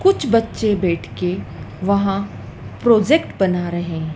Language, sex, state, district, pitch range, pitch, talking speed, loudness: Hindi, female, Madhya Pradesh, Dhar, 175-225 Hz, 195 Hz, 130 wpm, -19 LUFS